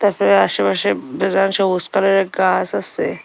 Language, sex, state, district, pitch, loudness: Bengali, female, Tripura, Unakoti, 190 Hz, -17 LUFS